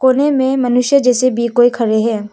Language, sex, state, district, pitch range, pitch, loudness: Hindi, female, Arunachal Pradesh, Papum Pare, 235-260 Hz, 250 Hz, -13 LUFS